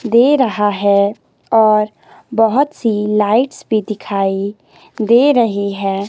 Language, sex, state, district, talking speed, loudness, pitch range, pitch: Hindi, female, Himachal Pradesh, Shimla, 120 wpm, -15 LUFS, 200-235 Hz, 215 Hz